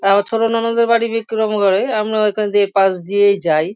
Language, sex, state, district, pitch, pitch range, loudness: Bengali, female, West Bengal, Kolkata, 210 Hz, 200-225 Hz, -16 LUFS